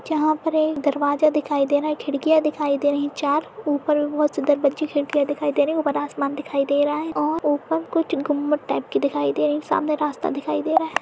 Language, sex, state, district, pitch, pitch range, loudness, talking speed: Hindi, female, Uttar Pradesh, Etah, 295 Hz, 285-310 Hz, -22 LUFS, 250 wpm